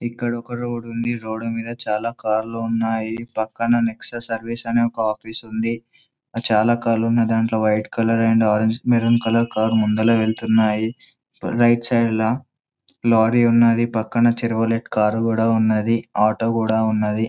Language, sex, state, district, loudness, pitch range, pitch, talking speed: Telugu, male, Andhra Pradesh, Anantapur, -20 LUFS, 110-115 Hz, 115 Hz, 145 wpm